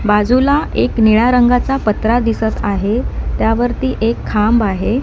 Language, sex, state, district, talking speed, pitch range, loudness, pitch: Marathi, female, Maharashtra, Mumbai Suburban, 130 wpm, 215-245 Hz, -14 LUFS, 225 Hz